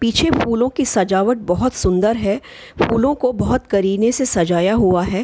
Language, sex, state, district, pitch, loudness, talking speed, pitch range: Hindi, female, Bihar, Gopalganj, 225 Hz, -17 LUFS, 170 wpm, 195-255 Hz